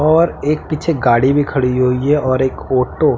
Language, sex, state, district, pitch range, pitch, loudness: Hindi, male, Uttarakhand, Tehri Garhwal, 130-150 Hz, 135 Hz, -15 LUFS